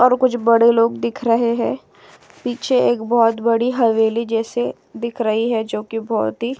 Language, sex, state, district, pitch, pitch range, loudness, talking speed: Hindi, female, Uttar Pradesh, Jyotiba Phule Nagar, 235 Hz, 225-240 Hz, -18 LUFS, 180 wpm